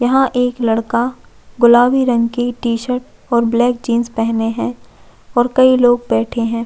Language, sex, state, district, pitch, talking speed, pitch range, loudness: Hindi, female, Chhattisgarh, Jashpur, 240 Hz, 155 wpm, 230-245 Hz, -15 LUFS